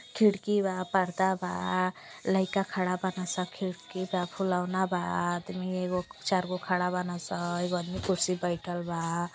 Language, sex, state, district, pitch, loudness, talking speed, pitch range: Hindi, female, Uttar Pradesh, Gorakhpur, 180 Hz, -30 LUFS, 160 wpm, 175-190 Hz